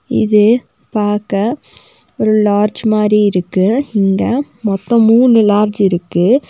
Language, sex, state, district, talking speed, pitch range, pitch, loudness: Tamil, female, Tamil Nadu, Nilgiris, 100 wpm, 200-230 Hz, 210 Hz, -13 LUFS